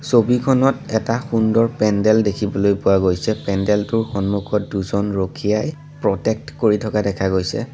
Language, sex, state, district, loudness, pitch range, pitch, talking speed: Assamese, male, Assam, Sonitpur, -19 LUFS, 100-115 Hz, 105 Hz, 125 wpm